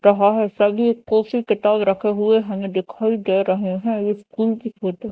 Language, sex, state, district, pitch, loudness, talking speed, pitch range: Hindi, female, Madhya Pradesh, Dhar, 210 Hz, -20 LUFS, 185 wpm, 195-220 Hz